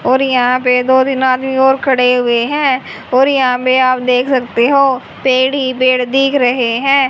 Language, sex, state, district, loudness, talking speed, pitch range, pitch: Hindi, female, Haryana, Jhajjar, -12 LUFS, 185 wpm, 250-265 Hz, 255 Hz